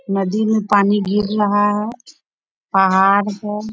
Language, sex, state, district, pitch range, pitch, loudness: Hindi, female, Bihar, Bhagalpur, 200-215 Hz, 205 Hz, -16 LUFS